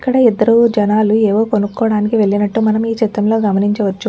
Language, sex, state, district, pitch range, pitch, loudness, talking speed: Telugu, female, Telangana, Nalgonda, 210-225 Hz, 215 Hz, -14 LUFS, 145 wpm